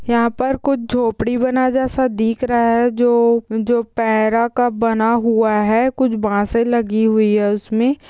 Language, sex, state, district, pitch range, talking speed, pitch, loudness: Hindi, female, Bihar, Purnia, 220-245 Hz, 150 wpm, 235 Hz, -16 LUFS